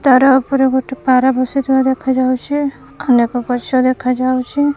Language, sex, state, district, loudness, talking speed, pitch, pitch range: Odia, female, Odisha, Khordha, -15 LUFS, 115 wpm, 260 Hz, 255-270 Hz